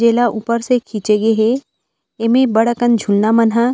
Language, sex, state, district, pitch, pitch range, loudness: Chhattisgarhi, female, Chhattisgarh, Rajnandgaon, 230 Hz, 220-240 Hz, -15 LUFS